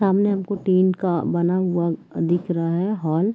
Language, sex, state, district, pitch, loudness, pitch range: Hindi, female, Chhattisgarh, Raigarh, 180 Hz, -21 LUFS, 170-195 Hz